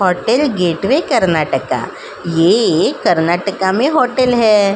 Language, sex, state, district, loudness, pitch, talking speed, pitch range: Hindi, female, Uttar Pradesh, Jalaun, -14 LUFS, 200 Hz, 125 wpm, 180-245 Hz